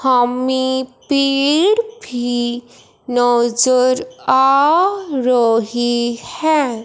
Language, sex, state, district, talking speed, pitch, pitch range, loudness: Hindi, male, Punjab, Fazilka, 60 wpm, 255 Hz, 240-280 Hz, -16 LUFS